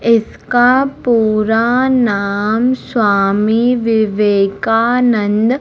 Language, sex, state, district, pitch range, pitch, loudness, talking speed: Hindi, female, Madhya Pradesh, Umaria, 210-245 Hz, 225 Hz, -13 LUFS, 55 wpm